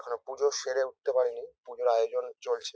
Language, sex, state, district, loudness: Bengali, male, West Bengal, North 24 Parganas, -30 LUFS